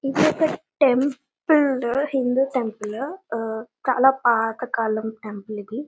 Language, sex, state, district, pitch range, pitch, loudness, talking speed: Telugu, female, Telangana, Nalgonda, 225-275 Hz, 255 Hz, -22 LUFS, 120 wpm